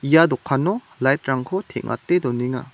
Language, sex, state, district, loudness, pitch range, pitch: Garo, male, Meghalaya, West Garo Hills, -21 LUFS, 130-180 Hz, 135 Hz